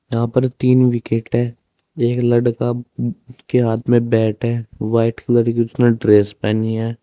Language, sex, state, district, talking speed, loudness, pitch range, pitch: Hindi, male, Uttar Pradesh, Saharanpur, 160 wpm, -17 LUFS, 115-120 Hz, 120 Hz